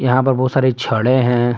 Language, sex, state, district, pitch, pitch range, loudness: Hindi, male, Jharkhand, Palamu, 130 Hz, 120-130 Hz, -16 LUFS